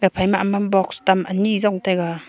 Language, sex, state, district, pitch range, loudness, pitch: Wancho, female, Arunachal Pradesh, Longding, 185-200 Hz, -19 LUFS, 190 Hz